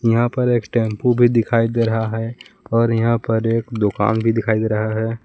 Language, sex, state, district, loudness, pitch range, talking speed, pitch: Hindi, male, Jharkhand, Palamu, -18 LUFS, 110-115 Hz, 215 wpm, 115 Hz